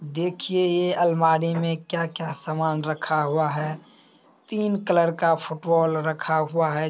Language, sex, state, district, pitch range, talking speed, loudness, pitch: Hindi, male, Bihar, Samastipur, 155-170 Hz, 140 wpm, -24 LUFS, 165 Hz